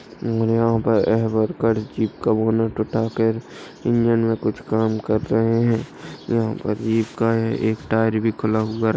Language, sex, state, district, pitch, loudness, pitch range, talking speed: Hindi, male, Chhattisgarh, Bastar, 115 Hz, -21 LUFS, 110-115 Hz, 175 wpm